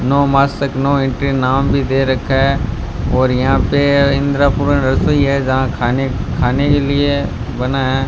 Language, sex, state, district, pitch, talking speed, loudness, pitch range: Hindi, male, Rajasthan, Bikaner, 135 Hz, 165 wpm, -15 LUFS, 130-140 Hz